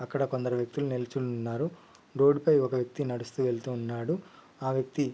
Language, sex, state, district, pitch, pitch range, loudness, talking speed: Telugu, male, Andhra Pradesh, Guntur, 130 Hz, 125-145 Hz, -30 LUFS, 175 wpm